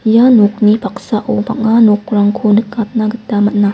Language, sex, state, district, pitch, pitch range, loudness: Garo, female, Meghalaya, West Garo Hills, 215 Hz, 205-225 Hz, -12 LUFS